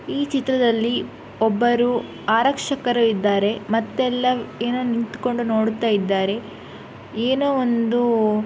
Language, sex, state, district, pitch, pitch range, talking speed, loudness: Kannada, female, Karnataka, Shimoga, 235 Hz, 220-250 Hz, 90 wpm, -21 LUFS